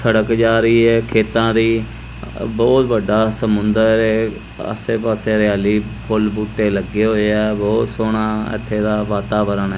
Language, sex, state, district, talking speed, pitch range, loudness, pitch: Punjabi, male, Punjab, Kapurthala, 140 wpm, 105-115 Hz, -17 LUFS, 110 Hz